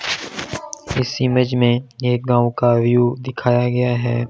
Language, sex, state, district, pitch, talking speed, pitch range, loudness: Hindi, male, Delhi, New Delhi, 125 Hz, 140 wpm, 120-125 Hz, -18 LUFS